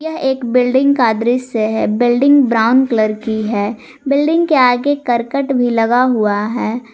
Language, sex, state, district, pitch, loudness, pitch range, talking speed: Hindi, female, Jharkhand, Garhwa, 245 Hz, -14 LUFS, 225-265 Hz, 165 wpm